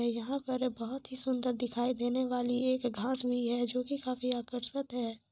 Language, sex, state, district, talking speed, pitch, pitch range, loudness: Hindi, female, Jharkhand, Jamtara, 200 wpm, 250 Hz, 245-255 Hz, -34 LUFS